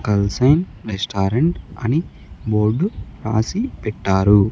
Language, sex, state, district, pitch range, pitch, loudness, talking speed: Telugu, male, Andhra Pradesh, Sri Satya Sai, 100-130 Hz, 110 Hz, -19 LUFS, 80 wpm